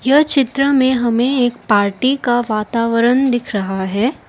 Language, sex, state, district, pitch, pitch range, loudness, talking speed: Hindi, female, Assam, Kamrup Metropolitan, 240 Hz, 220-265 Hz, -15 LUFS, 155 wpm